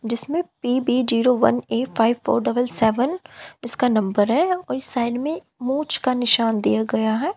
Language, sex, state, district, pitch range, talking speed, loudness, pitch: Hindi, female, Haryana, Jhajjar, 230-265 Hz, 170 wpm, -21 LUFS, 245 Hz